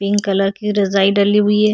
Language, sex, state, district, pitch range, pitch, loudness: Hindi, female, Uttarakhand, Tehri Garhwal, 195-210 Hz, 200 Hz, -15 LUFS